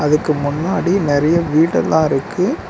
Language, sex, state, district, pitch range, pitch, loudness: Tamil, male, Tamil Nadu, Nilgiris, 145-165 Hz, 155 Hz, -16 LUFS